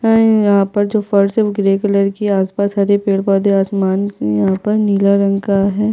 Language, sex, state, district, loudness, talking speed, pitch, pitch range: Hindi, female, Chhattisgarh, Jashpur, -14 LUFS, 255 wpm, 200 Hz, 195-205 Hz